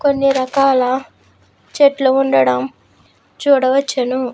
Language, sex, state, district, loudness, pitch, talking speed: Telugu, female, Andhra Pradesh, Krishna, -15 LUFS, 260 Hz, 70 wpm